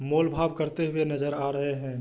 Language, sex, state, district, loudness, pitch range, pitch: Hindi, male, Bihar, Kishanganj, -28 LUFS, 140-160 Hz, 145 Hz